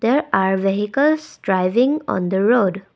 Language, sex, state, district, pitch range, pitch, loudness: English, female, Assam, Kamrup Metropolitan, 190-255 Hz, 200 Hz, -18 LUFS